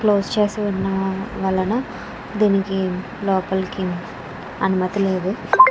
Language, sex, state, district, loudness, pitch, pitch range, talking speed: Telugu, female, Andhra Pradesh, Krishna, -21 LUFS, 195 Hz, 190-210 Hz, 85 wpm